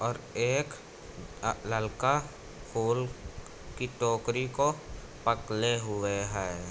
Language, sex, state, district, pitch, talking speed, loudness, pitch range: Hindi, male, Uttar Pradesh, Budaun, 115 Hz, 100 wpm, -31 LUFS, 110-125 Hz